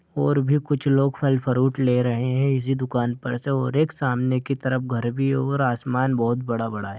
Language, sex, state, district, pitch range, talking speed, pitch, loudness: Hindi, male, Bihar, Darbhanga, 125-140 Hz, 225 wpm, 130 Hz, -23 LUFS